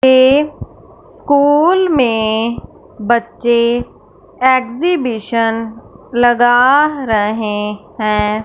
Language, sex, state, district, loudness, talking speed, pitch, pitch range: Hindi, female, Punjab, Fazilka, -14 LUFS, 55 wpm, 240 Hz, 220-265 Hz